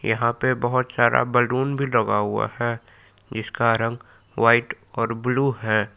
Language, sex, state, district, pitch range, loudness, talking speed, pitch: Hindi, male, Jharkhand, Palamu, 110-125 Hz, -22 LUFS, 150 wpm, 115 Hz